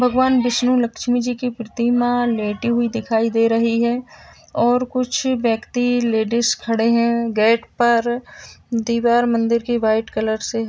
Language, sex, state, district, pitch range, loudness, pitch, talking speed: Hindi, female, Uttar Pradesh, Jalaun, 230-245 Hz, -19 LUFS, 235 Hz, 150 wpm